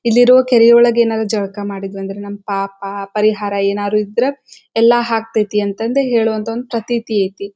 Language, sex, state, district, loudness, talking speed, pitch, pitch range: Kannada, female, Karnataka, Dharwad, -15 LUFS, 160 wpm, 215 Hz, 200-235 Hz